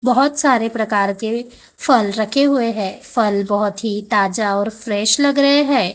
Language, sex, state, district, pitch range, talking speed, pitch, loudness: Hindi, male, Maharashtra, Gondia, 205-265 Hz, 170 wpm, 225 Hz, -17 LUFS